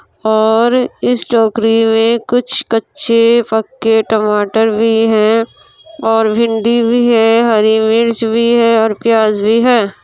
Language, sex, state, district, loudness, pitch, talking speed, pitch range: Hindi, female, Bihar, Kishanganj, -12 LUFS, 225 Hz, 130 wpm, 220-235 Hz